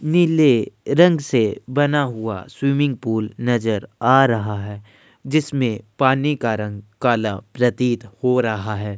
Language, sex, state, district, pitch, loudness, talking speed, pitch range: Hindi, male, Uttar Pradesh, Jyotiba Phule Nagar, 120 Hz, -19 LUFS, 135 wpm, 110-140 Hz